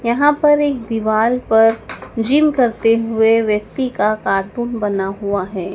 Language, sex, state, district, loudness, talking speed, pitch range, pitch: Hindi, female, Madhya Pradesh, Dhar, -16 LUFS, 145 wpm, 210-250 Hz, 225 Hz